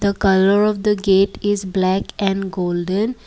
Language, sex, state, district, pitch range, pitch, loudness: English, female, Assam, Kamrup Metropolitan, 190-205 Hz, 195 Hz, -18 LUFS